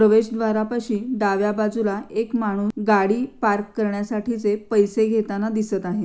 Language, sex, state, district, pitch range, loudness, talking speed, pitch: Marathi, female, Maharashtra, Pune, 205-220 Hz, -22 LUFS, 120 wpm, 215 Hz